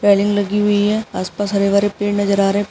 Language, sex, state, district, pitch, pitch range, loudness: Hindi, female, Uttar Pradesh, Jyotiba Phule Nagar, 205 Hz, 200-205 Hz, -17 LUFS